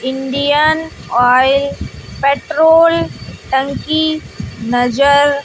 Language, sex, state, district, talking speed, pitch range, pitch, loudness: Hindi, female, Bihar, West Champaran, 55 wpm, 265-315 Hz, 280 Hz, -13 LUFS